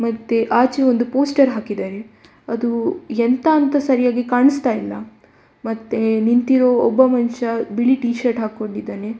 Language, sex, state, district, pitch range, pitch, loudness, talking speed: Kannada, female, Karnataka, Dakshina Kannada, 225-255 Hz, 240 Hz, -18 LUFS, 115 wpm